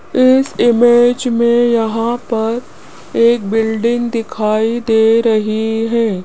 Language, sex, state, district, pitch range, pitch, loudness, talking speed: Hindi, female, Rajasthan, Jaipur, 225-240 Hz, 230 Hz, -14 LUFS, 105 wpm